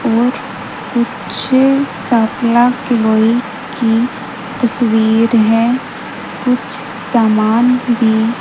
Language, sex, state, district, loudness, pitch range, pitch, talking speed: Hindi, female, Haryana, Rohtak, -14 LUFS, 225-250 Hz, 235 Hz, 70 wpm